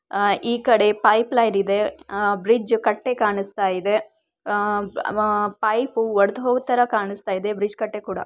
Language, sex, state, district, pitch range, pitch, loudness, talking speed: Kannada, female, Karnataka, Shimoga, 205-230 Hz, 210 Hz, -21 LUFS, 130 wpm